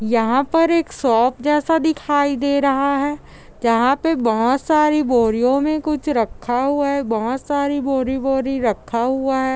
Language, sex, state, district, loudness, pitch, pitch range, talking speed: Hindi, female, Bihar, Gopalganj, -18 LUFS, 270 Hz, 245-290 Hz, 170 wpm